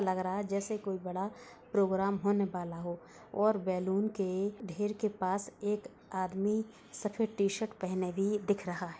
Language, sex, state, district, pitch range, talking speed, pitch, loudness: Hindi, female, Uttar Pradesh, Budaun, 185-210 Hz, 175 wpm, 200 Hz, -34 LUFS